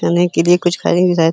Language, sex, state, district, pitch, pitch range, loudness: Hindi, male, Uttar Pradesh, Hamirpur, 175 Hz, 170-180 Hz, -14 LUFS